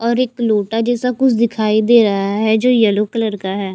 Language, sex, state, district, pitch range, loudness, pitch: Hindi, female, Haryana, Charkhi Dadri, 210-235 Hz, -15 LUFS, 225 Hz